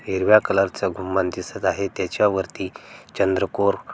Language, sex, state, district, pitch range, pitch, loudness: Marathi, male, Maharashtra, Dhule, 95-100 Hz, 95 Hz, -22 LUFS